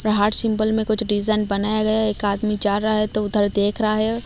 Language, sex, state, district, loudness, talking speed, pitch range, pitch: Hindi, female, Odisha, Malkangiri, -11 LUFS, 265 wpm, 205-215 Hz, 215 Hz